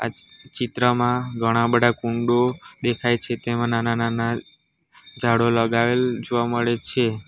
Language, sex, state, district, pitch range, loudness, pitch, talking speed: Gujarati, male, Gujarat, Valsad, 115-120 Hz, -22 LUFS, 120 Hz, 130 wpm